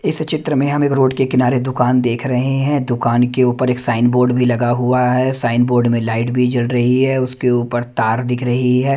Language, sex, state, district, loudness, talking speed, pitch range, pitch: Hindi, male, Bihar, Katihar, -16 LUFS, 240 wpm, 120-130 Hz, 125 Hz